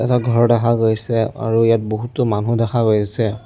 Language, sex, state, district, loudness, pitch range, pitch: Assamese, male, Assam, Sonitpur, -17 LUFS, 110-120 Hz, 115 Hz